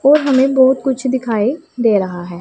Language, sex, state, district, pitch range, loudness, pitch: Hindi, female, Punjab, Pathankot, 220-270 Hz, -15 LUFS, 260 Hz